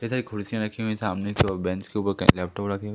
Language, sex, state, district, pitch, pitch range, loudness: Hindi, male, Madhya Pradesh, Katni, 105 Hz, 100-110 Hz, -25 LUFS